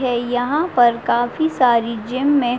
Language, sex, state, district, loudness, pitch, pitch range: Hindi, female, Bihar, Madhepura, -18 LUFS, 245 Hz, 240-270 Hz